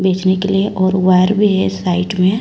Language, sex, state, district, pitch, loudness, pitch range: Hindi, female, Chhattisgarh, Raipur, 190 Hz, -14 LUFS, 185-195 Hz